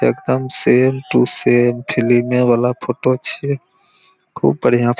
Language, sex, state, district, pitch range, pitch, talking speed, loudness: Maithili, male, Bihar, Araria, 120-140 Hz, 125 Hz, 120 wpm, -16 LUFS